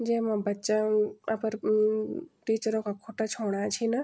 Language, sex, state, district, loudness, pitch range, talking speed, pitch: Garhwali, female, Uttarakhand, Tehri Garhwal, -29 LUFS, 215-225 Hz, 150 wpm, 215 Hz